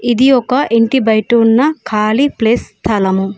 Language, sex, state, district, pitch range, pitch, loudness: Telugu, female, Telangana, Komaram Bheem, 220-265 Hz, 230 Hz, -12 LUFS